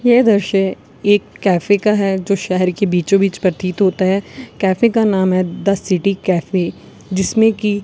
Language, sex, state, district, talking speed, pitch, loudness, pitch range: Hindi, female, Rajasthan, Bikaner, 175 wpm, 195 Hz, -16 LUFS, 185-205 Hz